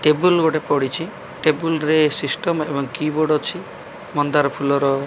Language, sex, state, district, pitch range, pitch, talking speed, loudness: Odia, male, Odisha, Malkangiri, 145-160 Hz, 150 Hz, 140 wpm, -20 LUFS